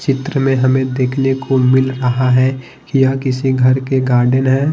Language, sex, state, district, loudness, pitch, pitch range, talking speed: Hindi, male, Bihar, Patna, -14 LUFS, 130 Hz, 130-135 Hz, 190 wpm